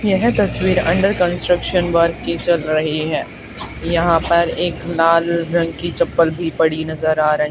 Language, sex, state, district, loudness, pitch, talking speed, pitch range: Hindi, female, Haryana, Charkhi Dadri, -17 LUFS, 170 Hz, 170 wpm, 160-175 Hz